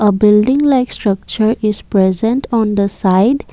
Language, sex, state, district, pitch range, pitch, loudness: English, female, Assam, Kamrup Metropolitan, 200-240 Hz, 215 Hz, -14 LUFS